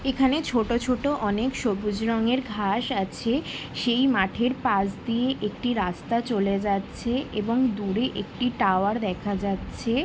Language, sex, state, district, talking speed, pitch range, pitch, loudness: Bengali, female, West Bengal, Jalpaiguri, 130 wpm, 205-250 Hz, 230 Hz, -25 LUFS